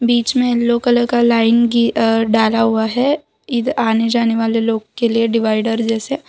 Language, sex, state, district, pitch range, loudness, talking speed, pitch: Hindi, female, Gujarat, Valsad, 225-240 Hz, -15 LUFS, 160 wpm, 230 Hz